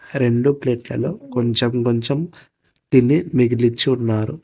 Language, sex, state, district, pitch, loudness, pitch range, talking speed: Telugu, male, Telangana, Hyderabad, 130 Hz, -18 LUFS, 120-145 Hz, 95 wpm